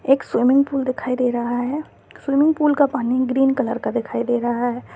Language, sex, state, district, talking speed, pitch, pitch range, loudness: Hindi, female, Uttar Pradesh, Deoria, 195 wpm, 255 Hz, 240-275 Hz, -20 LUFS